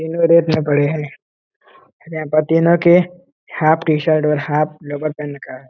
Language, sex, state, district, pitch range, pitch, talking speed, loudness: Hindi, male, Uttarakhand, Uttarkashi, 150-165 Hz, 155 Hz, 190 wpm, -16 LUFS